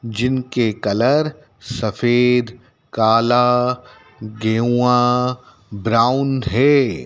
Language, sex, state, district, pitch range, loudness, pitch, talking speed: Hindi, male, Madhya Pradesh, Dhar, 115-125 Hz, -17 LUFS, 125 Hz, 60 wpm